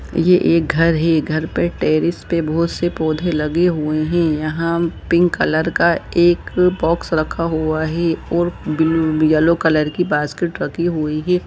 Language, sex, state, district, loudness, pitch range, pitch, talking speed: Hindi, male, Jharkhand, Jamtara, -17 LUFS, 155-170 Hz, 165 Hz, 165 wpm